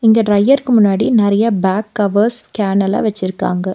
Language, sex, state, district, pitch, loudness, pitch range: Tamil, female, Tamil Nadu, Nilgiris, 210 Hz, -14 LUFS, 195-225 Hz